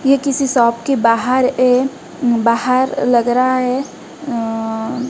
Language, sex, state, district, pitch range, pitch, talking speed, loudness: Hindi, female, Odisha, Malkangiri, 235-265 Hz, 255 Hz, 130 wpm, -16 LUFS